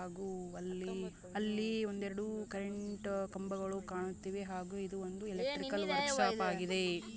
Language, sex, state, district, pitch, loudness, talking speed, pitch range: Kannada, female, Karnataka, Dharwad, 195 Hz, -39 LUFS, 115 wpm, 185-205 Hz